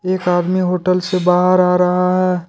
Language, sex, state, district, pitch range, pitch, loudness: Hindi, male, Jharkhand, Deoghar, 180-185 Hz, 180 Hz, -15 LUFS